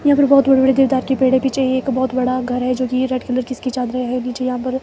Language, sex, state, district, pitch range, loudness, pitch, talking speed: Hindi, female, Himachal Pradesh, Shimla, 255-265 Hz, -17 LUFS, 255 Hz, 325 wpm